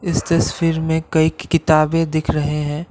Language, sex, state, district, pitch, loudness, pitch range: Hindi, male, Assam, Kamrup Metropolitan, 160 Hz, -18 LUFS, 155-165 Hz